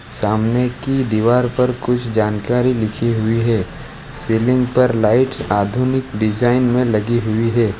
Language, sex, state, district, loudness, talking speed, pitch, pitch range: Hindi, male, Gujarat, Valsad, -17 LUFS, 140 wpm, 120 Hz, 110-125 Hz